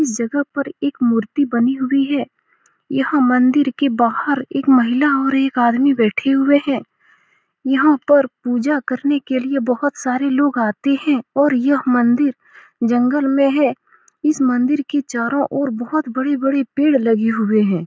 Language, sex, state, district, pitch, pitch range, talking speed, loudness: Hindi, female, Bihar, Saran, 270 Hz, 245-285 Hz, 165 wpm, -17 LUFS